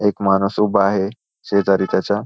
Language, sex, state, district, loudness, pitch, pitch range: Marathi, male, Maharashtra, Pune, -18 LUFS, 100 Hz, 95-105 Hz